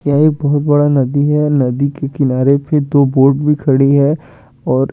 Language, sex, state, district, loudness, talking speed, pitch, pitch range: Hindi, male, Chandigarh, Chandigarh, -13 LUFS, 195 wpm, 140 Hz, 135-145 Hz